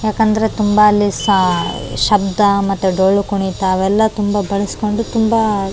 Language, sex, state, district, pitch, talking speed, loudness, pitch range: Kannada, female, Karnataka, Raichur, 205 Hz, 135 wpm, -15 LUFS, 195-215 Hz